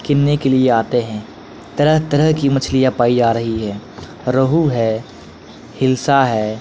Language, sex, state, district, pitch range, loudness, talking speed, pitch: Hindi, male, Bihar, Patna, 110-140 Hz, -16 LUFS, 135 wpm, 125 Hz